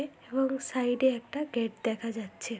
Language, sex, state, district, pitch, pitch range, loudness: Bengali, female, West Bengal, Malda, 245 Hz, 230-265 Hz, -31 LUFS